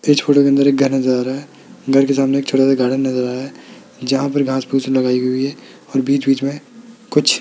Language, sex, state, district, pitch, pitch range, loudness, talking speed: Hindi, male, Rajasthan, Jaipur, 135 Hz, 130-140 Hz, -16 LUFS, 265 wpm